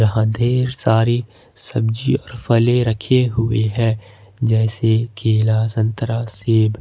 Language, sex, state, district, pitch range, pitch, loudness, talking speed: Hindi, male, Jharkhand, Ranchi, 110-120 Hz, 115 Hz, -18 LUFS, 115 wpm